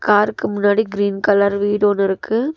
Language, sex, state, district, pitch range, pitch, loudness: Tamil, female, Tamil Nadu, Nilgiris, 200-210 Hz, 205 Hz, -17 LUFS